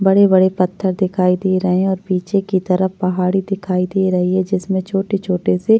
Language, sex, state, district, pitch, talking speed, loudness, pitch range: Hindi, female, Maharashtra, Chandrapur, 190 Hz, 215 wpm, -17 LUFS, 185-195 Hz